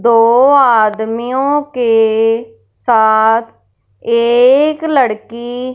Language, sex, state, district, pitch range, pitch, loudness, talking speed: Hindi, female, Punjab, Fazilka, 220-255 Hz, 235 Hz, -12 LUFS, 60 wpm